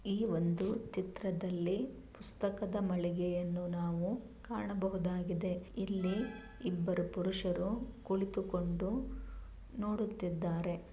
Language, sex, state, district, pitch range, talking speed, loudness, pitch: Kannada, female, Karnataka, Bellary, 180-210 Hz, 65 wpm, -37 LUFS, 190 Hz